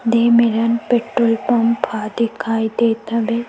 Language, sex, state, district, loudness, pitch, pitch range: Chhattisgarhi, female, Chhattisgarh, Sukma, -17 LUFS, 230 Hz, 225-235 Hz